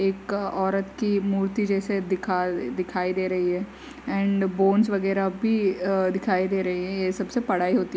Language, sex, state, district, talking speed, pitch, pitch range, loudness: Hindi, female, Uttar Pradesh, Varanasi, 165 wpm, 195 Hz, 185-195 Hz, -25 LUFS